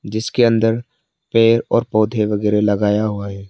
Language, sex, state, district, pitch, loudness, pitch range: Hindi, male, Arunachal Pradesh, Lower Dibang Valley, 110 Hz, -17 LUFS, 105-115 Hz